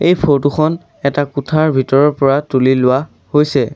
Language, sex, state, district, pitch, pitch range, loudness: Assamese, male, Assam, Sonitpur, 145 Hz, 135-155 Hz, -14 LUFS